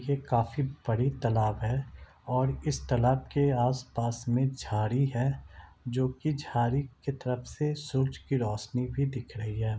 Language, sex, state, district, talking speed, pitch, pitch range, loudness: Hindi, male, Chhattisgarh, Raigarh, 160 wpm, 125 Hz, 115-135 Hz, -30 LUFS